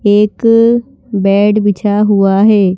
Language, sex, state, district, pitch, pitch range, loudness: Hindi, female, Madhya Pradesh, Bhopal, 205 Hz, 200-215 Hz, -10 LUFS